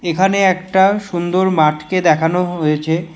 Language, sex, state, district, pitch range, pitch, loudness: Bengali, male, West Bengal, Alipurduar, 160-190 Hz, 175 Hz, -15 LUFS